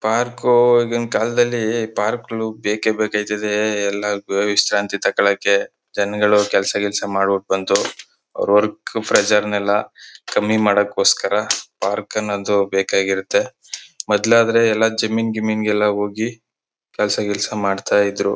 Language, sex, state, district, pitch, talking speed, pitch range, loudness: Kannada, male, Karnataka, Chamarajanagar, 105 Hz, 115 wpm, 100-110 Hz, -18 LUFS